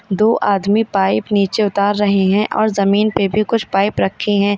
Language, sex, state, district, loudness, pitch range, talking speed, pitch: Hindi, female, Uttar Pradesh, Lalitpur, -16 LUFS, 195-215 Hz, 195 wpm, 205 Hz